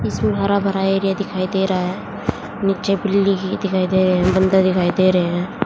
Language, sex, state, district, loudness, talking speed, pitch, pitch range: Hindi, female, Haryana, Jhajjar, -18 LUFS, 210 wpm, 190 Hz, 185-195 Hz